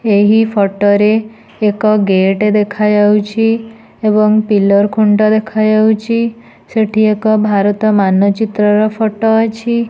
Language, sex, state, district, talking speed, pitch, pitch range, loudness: Odia, female, Odisha, Nuapada, 110 wpm, 215 Hz, 205-220 Hz, -12 LUFS